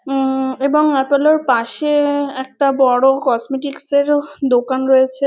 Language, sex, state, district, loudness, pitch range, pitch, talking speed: Bengali, female, West Bengal, North 24 Parganas, -16 LUFS, 260-285 Hz, 270 Hz, 125 wpm